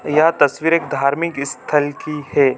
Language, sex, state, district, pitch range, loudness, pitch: Hindi, male, Chhattisgarh, Bilaspur, 140-160 Hz, -18 LUFS, 145 Hz